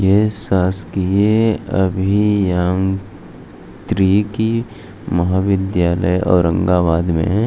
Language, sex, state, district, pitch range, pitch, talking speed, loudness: Hindi, male, Maharashtra, Aurangabad, 90-105 Hz, 95 Hz, 65 wpm, -16 LUFS